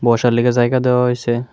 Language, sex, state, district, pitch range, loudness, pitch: Bengali, male, Tripura, West Tripura, 120-125 Hz, -16 LUFS, 120 Hz